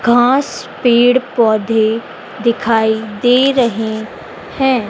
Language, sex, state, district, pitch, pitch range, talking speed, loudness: Hindi, female, Madhya Pradesh, Dhar, 235 Hz, 220-250 Hz, 85 wpm, -14 LUFS